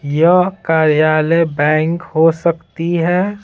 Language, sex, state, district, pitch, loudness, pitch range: Hindi, male, Bihar, Patna, 165 Hz, -14 LUFS, 155-170 Hz